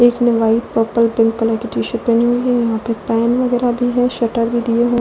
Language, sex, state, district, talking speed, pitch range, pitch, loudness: Hindi, female, Delhi, New Delhi, 250 wpm, 230-240 Hz, 235 Hz, -16 LUFS